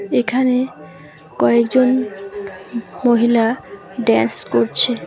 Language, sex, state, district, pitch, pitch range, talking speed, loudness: Bengali, female, West Bengal, Alipurduar, 235 Hz, 195-250 Hz, 60 wpm, -17 LUFS